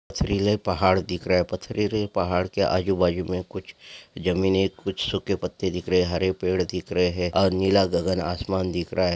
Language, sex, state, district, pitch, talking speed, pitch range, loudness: Hindi, male, Maharashtra, Pune, 95 Hz, 190 wpm, 90-95 Hz, -24 LUFS